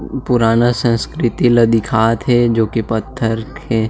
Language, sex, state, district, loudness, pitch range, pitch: Chhattisgarhi, male, Chhattisgarh, Sarguja, -15 LUFS, 115-120 Hz, 115 Hz